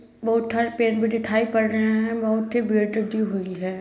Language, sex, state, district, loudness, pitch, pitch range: Hindi, female, Uttar Pradesh, Hamirpur, -23 LUFS, 220 Hz, 220-230 Hz